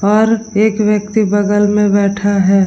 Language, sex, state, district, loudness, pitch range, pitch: Hindi, female, Bihar, Vaishali, -13 LUFS, 200-210 Hz, 205 Hz